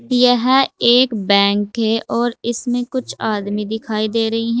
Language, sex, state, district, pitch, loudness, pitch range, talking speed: Hindi, female, Uttar Pradesh, Saharanpur, 230 Hz, -17 LUFS, 215-245 Hz, 155 wpm